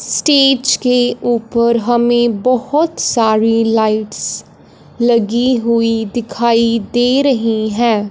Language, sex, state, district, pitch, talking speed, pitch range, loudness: Hindi, female, Punjab, Fazilka, 235 Hz, 95 wpm, 225-245 Hz, -14 LUFS